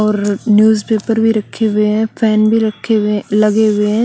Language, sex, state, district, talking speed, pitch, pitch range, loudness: Hindi, female, Chandigarh, Chandigarh, 220 wpm, 215 Hz, 210-220 Hz, -13 LUFS